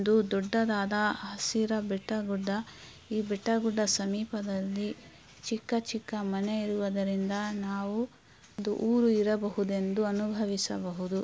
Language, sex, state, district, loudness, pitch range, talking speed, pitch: Kannada, female, Karnataka, Belgaum, -31 LUFS, 200-220 Hz, 90 wpm, 210 Hz